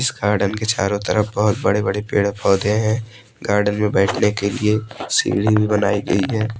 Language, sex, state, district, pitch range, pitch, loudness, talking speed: Hindi, male, Odisha, Malkangiri, 100-110 Hz, 105 Hz, -19 LUFS, 190 wpm